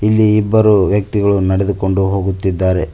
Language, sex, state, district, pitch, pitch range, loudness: Kannada, male, Karnataka, Koppal, 100 Hz, 95-105 Hz, -14 LUFS